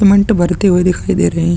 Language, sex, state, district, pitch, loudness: Hindi, male, Chhattisgarh, Sukma, 180 Hz, -13 LUFS